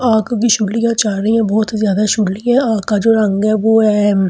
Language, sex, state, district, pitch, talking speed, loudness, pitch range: Hindi, female, Delhi, New Delhi, 215 Hz, 125 wpm, -14 LUFS, 210-225 Hz